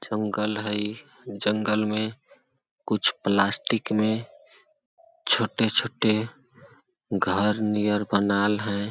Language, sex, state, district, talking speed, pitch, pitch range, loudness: Awadhi, male, Chhattisgarh, Balrampur, 80 wpm, 105 Hz, 105-115 Hz, -25 LUFS